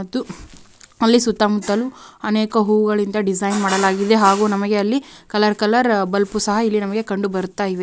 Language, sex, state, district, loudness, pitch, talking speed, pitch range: Kannada, female, Karnataka, Raichur, -18 LUFS, 210 Hz, 145 wpm, 200-220 Hz